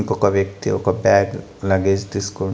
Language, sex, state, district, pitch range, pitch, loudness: Telugu, male, Andhra Pradesh, Annamaya, 95-100 Hz, 100 Hz, -19 LUFS